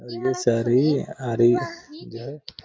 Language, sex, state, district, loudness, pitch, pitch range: Hindi, male, Bihar, Gaya, -22 LUFS, 125 Hz, 120-150 Hz